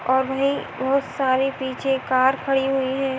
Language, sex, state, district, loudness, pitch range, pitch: Hindi, female, Uttar Pradesh, Etah, -22 LUFS, 260-270 Hz, 265 Hz